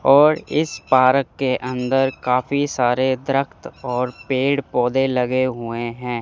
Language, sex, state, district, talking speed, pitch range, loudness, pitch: Hindi, male, Chandigarh, Chandigarh, 125 wpm, 125-135 Hz, -19 LUFS, 130 Hz